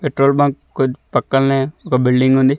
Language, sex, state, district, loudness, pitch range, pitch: Telugu, male, Telangana, Mahabubabad, -16 LUFS, 130-140 Hz, 135 Hz